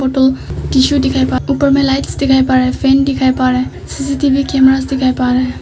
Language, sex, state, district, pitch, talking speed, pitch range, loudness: Hindi, female, Arunachal Pradesh, Papum Pare, 265 Hz, 245 wpm, 260-275 Hz, -13 LUFS